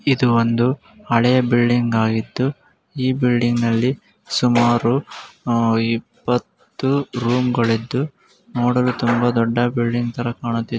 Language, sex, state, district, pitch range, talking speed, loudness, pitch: Kannada, male, Karnataka, Mysore, 115-125 Hz, 100 wpm, -19 LUFS, 120 Hz